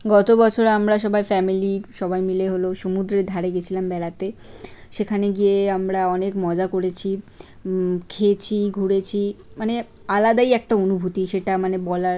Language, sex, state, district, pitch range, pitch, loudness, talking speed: Bengali, female, West Bengal, Kolkata, 185-205 Hz, 195 Hz, -21 LUFS, 140 wpm